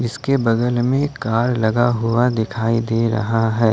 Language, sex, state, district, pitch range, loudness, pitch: Hindi, male, Jharkhand, Ranchi, 115-120 Hz, -18 LUFS, 115 Hz